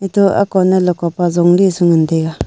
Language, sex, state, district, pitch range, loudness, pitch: Wancho, female, Arunachal Pradesh, Longding, 170-195 Hz, -13 LUFS, 180 Hz